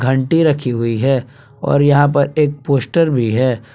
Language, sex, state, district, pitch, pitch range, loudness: Hindi, male, Jharkhand, Palamu, 135 Hz, 125-145 Hz, -15 LUFS